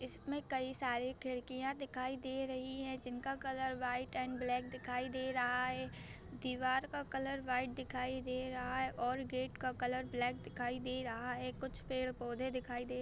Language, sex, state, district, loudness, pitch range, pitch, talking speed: Hindi, female, Jharkhand, Sahebganj, -40 LUFS, 250-260 Hz, 255 Hz, 180 wpm